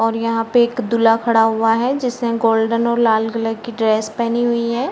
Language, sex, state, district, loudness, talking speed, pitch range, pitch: Hindi, female, Uttar Pradesh, Varanasi, -17 LUFS, 220 wpm, 225-235 Hz, 230 Hz